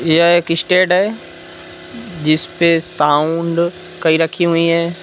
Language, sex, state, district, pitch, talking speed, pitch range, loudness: Hindi, male, Uttar Pradesh, Lucknow, 170 Hz, 120 wpm, 165-175 Hz, -14 LUFS